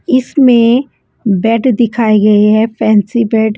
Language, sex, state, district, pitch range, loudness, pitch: Hindi, female, Punjab, Kapurthala, 215-245 Hz, -10 LUFS, 230 Hz